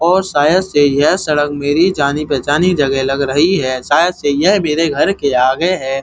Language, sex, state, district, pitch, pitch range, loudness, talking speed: Hindi, male, Uttar Pradesh, Muzaffarnagar, 145 Hz, 140-175 Hz, -14 LUFS, 200 wpm